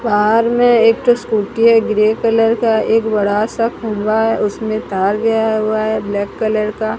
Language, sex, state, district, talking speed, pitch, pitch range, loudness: Hindi, female, Odisha, Sambalpur, 190 wpm, 220 Hz, 215-225 Hz, -15 LUFS